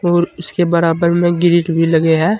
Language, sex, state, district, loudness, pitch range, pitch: Hindi, male, Uttar Pradesh, Saharanpur, -14 LUFS, 165-175 Hz, 170 Hz